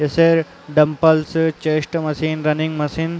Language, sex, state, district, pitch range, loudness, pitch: Hindi, male, Uttar Pradesh, Muzaffarnagar, 150-160 Hz, -18 LUFS, 155 Hz